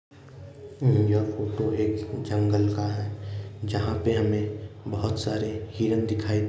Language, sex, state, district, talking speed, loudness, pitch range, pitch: Hindi, male, Uttar Pradesh, Ghazipur, 140 wpm, -27 LUFS, 105-110 Hz, 105 Hz